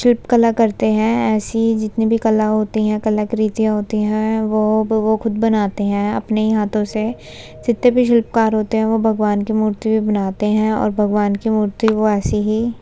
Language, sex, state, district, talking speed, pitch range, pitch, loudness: Hindi, female, Uttar Pradesh, Budaun, 190 wpm, 215-225 Hz, 215 Hz, -17 LUFS